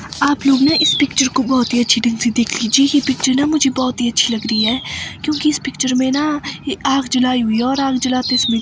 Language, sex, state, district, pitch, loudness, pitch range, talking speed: Hindi, female, Himachal Pradesh, Shimla, 260 Hz, -16 LUFS, 240-275 Hz, 250 wpm